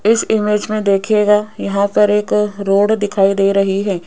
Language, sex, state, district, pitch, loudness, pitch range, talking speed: Hindi, female, Rajasthan, Jaipur, 205 Hz, -15 LUFS, 200-210 Hz, 175 wpm